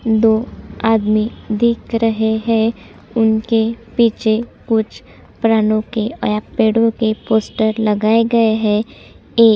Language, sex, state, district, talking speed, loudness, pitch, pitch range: Hindi, female, Chhattisgarh, Sukma, 120 wpm, -16 LUFS, 220 Hz, 220-230 Hz